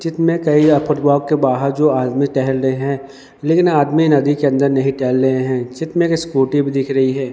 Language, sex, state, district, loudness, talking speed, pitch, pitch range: Hindi, male, Madhya Pradesh, Dhar, -16 LUFS, 195 wpm, 140 Hz, 135-150 Hz